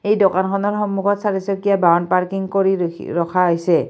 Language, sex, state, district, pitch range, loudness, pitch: Assamese, female, Assam, Kamrup Metropolitan, 180-200 Hz, -18 LUFS, 195 Hz